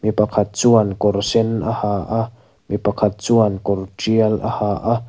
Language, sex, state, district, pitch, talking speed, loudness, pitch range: Mizo, male, Mizoram, Aizawl, 110 Hz, 190 wpm, -18 LUFS, 105-115 Hz